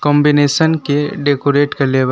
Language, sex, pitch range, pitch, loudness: Bhojpuri, male, 140-150 Hz, 145 Hz, -14 LUFS